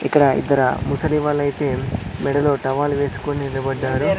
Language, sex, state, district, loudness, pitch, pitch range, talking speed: Telugu, male, Andhra Pradesh, Sri Satya Sai, -20 LUFS, 140 Hz, 135-145 Hz, 115 wpm